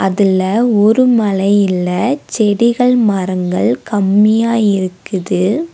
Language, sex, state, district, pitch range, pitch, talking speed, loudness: Tamil, female, Tamil Nadu, Nilgiris, 190-230 Hz, 205 Hz, 85 wpm, -13 LUFS